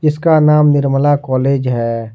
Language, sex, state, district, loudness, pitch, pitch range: Hindi, male, Jharkhand, Ranchi, -13 LUFS, 140 Hz, 130-150 Hz